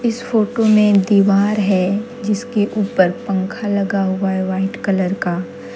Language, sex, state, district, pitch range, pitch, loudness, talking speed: Hindi, female, Jharkhand, Deoghar, 190-215 Hz, 200 Hz, -17 LUFS, 145 wpm